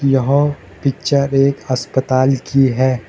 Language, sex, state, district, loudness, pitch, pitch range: Hindi, male, Arunachal Pradesh, Lower Dibang Valley, -16 LUFS, 135 Hz, 130-140 Hz